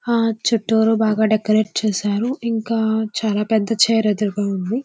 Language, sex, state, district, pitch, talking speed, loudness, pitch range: Telugu, female, Andhra Pradesh, Visakhapatnam, 220 Hz, 135 wpm, -19 LUFS, 215-225 Hz